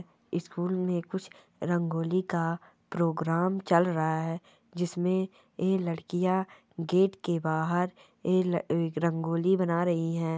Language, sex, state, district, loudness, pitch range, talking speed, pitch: Hindi, female, Bihar, Jamui, -29 LUFS, 165-185 Hz, 120 wpm, 175 Hz